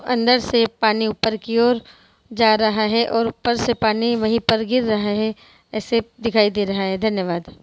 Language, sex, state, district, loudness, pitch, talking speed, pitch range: Hindi, female, Bihar, Sitamarhi, -19 LUFS, 225 Hz, 190 wpm, 215-235 Hz